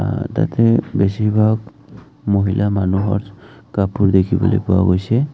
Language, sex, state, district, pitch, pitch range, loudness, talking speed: Assamese, male, Assam, Kamrup Metropolitan, 100 Hz, 95-110 Hz, -17 LUFS, 100 wpm